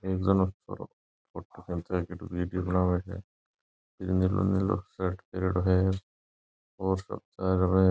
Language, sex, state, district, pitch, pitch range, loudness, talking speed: Marwari, male, Rajasthan, Nagaur, 95 Hz, 90-95 Hz, -29 LUFS, 145 wpm